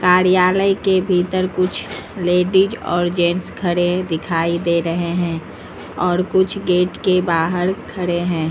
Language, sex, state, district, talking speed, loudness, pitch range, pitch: Hindi, female, Uttar Pradesh, Lucknow, 135 wpm, -18 LUFS, 175-185 Hz, 180 Hz